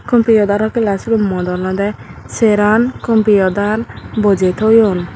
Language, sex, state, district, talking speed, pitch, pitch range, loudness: Chakma, female, Tripura, Dhalai, 130 wpm, 210 Hz, 195-225 Hz, -14 LUFS